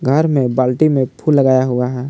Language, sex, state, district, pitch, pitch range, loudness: Hindi, male, Jharkhand, Palamu, 130 Hz, 125-145 Hz, -15 LUFS